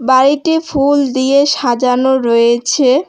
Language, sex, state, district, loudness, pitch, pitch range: Bengali, female, West Bengal, Alipurduar, -12 LUFS, 265 Hz, 250-285 Hz